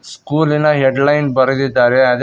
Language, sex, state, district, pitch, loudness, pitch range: Kannada, male, Karnataka, Koppal, 135 Hz, -14 LUFS, 130-150 Hz